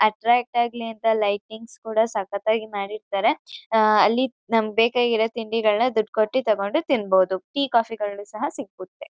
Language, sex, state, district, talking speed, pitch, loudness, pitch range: Kannada, female, Karnataka, Chamarajanagar, 125 wpm, 225 Hz, -22 LUFS, 210-240 Hz